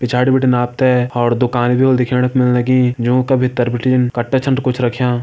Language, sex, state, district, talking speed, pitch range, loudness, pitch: Hindi, male, Uttarakhand, Uttarkashi, 230 wpm, 125-130 Hz, -15 LUFS, 125 Hz